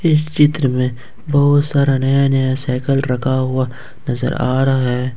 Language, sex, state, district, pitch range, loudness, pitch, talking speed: Hindi, male, Jharkhand, Ranchi, 125-140 Hz, -16 LUFS, 130 Hz, 160 wpm